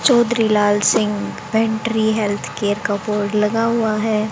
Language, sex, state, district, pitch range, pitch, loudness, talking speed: Hindi, female, Haryana, Jhajjar, 210-225 Hz, 215 Hz, -18 LUFS, 150 wpm